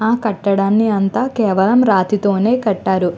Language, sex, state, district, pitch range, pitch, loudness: Telugu, female, Andhra Pradesh, Chittoor, 195-225 Hz, 205 Hz, -15 LUFS